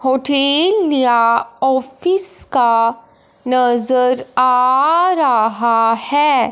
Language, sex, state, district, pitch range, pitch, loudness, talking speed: Hindi, female, Punjab, Fazilka, 235-285 Hz, 255 Hz, -14 LUFS, 75 wpm